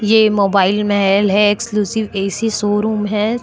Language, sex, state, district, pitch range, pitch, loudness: Hindi, female, Chhattisgarh, Korba, 200-215 Hz, 210 Hz, -15 LUFS